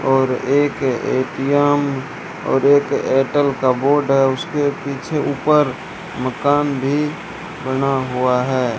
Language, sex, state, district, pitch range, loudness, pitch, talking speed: Hindi, male, Rajasthan, Bikaner, 130-145 Hz, -18 LUFS, 140 Hz, 115 wpm